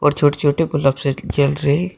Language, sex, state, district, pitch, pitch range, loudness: Hindi, male, Uttar Pradesh, Shamli, 145 Hz, 140-150 Hz, -18 LUFS